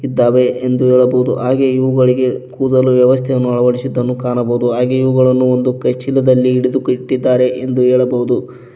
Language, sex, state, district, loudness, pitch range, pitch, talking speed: Kannada, male, Karnataka, Koppal, -13 LUFS, 125-130 Hz, 125 Hz, 115 wpm